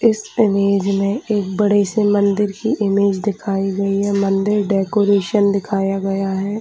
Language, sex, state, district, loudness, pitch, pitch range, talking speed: Hindi, female, Chhattisgarh, Bastar, -17 LUFS, 200 Hz, 195-205 Hz, 165 wpm